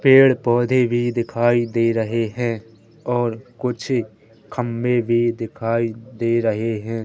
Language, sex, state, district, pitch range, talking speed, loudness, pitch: Hindi, male, Madhya Pradesh, Katni, 115-120 Hz, 130 wpm, -20 LUFS, 115 Hz